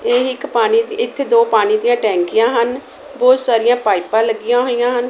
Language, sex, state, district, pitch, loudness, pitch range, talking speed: Punjabi, female, Punjab, Kapurthala, 240 Hz, -15 LUFS, 225-255 Hz, 175 wpm